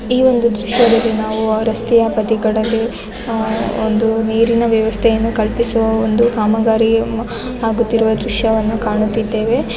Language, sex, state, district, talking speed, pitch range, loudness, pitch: Kannada, female, Karnataka, Bellary, 100 wpm, 220-230 Hz, -15 LUFS, 225 Hz